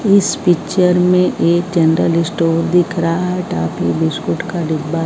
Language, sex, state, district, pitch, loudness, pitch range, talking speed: Hindi, female, Bihar, Kaimur, 170 Hz, -15 LUFS, 165-180 Hz, 155 wpm